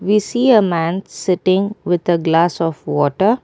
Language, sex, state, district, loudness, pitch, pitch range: English, female, Karnataka, Bangalore, -16 LUFS, 180 Hz, 165-200 Hz